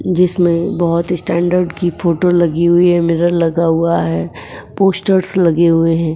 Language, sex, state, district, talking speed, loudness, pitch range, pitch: Hindi, female, Uttar Pradesh, Etah, 165 wpm, -14 LUFS, 165-180 Hz, 170 Hz